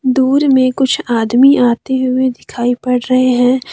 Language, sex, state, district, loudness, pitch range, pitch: Hindi, female, Jharkhand, Deoghar, -13 LUFS, 245-265 Hz, 255 Hz